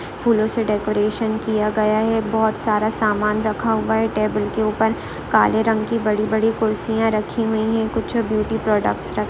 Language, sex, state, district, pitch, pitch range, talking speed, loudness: Hindi, female, Maharashtra, Solapur, 220 Hz, 215-225 Hz, 180 wpm, -20 LUFS